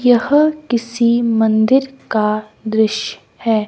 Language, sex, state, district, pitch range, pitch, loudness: Hindi, female, Himachal Pradesh, Shimla, 220-250 Hz, 235 Hz, -16 LUFS